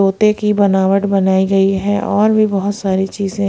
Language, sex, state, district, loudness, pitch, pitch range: Hindi, female, Haryana, Rohtak, -14 LUFS, 195 Hz, 195-205 Hz